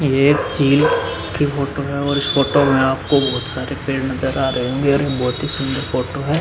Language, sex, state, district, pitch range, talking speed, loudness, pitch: Hindi, male, Bihar, Vaishali, 130-140 Hz, 235 wpm, -18 LUFS, 140 Hz